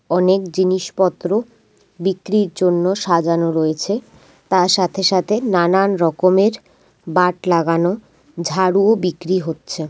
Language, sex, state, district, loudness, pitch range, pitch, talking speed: Bengali, female, West Bengal, Jalpaiguri, -17 LUFS, 170-195 Hz, 185 Hz, 95 wpm